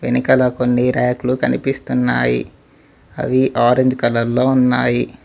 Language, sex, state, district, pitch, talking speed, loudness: Telugu, male, Telangana, Mahabubabad, 125 Hz, 105 wpm, -16 LUFS